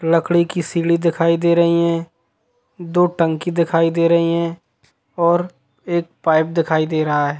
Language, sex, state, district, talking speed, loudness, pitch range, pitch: Hindi, male, Chhattisgarh, Sukma, 160 wpm, -17 LUFS, 160-170 Hz, 170 Hz